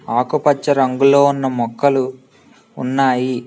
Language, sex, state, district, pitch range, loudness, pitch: Telugu, male, Andhra Pradesh, Srikakulam, 125-140 Hz, -16 LUFS, 130 Hz